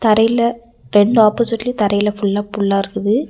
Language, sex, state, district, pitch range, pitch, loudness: Tamil, female, Tamil Nadu, Nilgiris, 205-235 Hz, 215 Hz, -15 LUFS